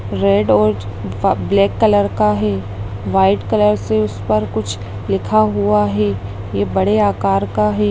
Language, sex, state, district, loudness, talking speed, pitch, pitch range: Hindi, female, Bihar, Sitamarhi, -16 LUFS, 160 wpm, 100 Hz, 100-105 Hz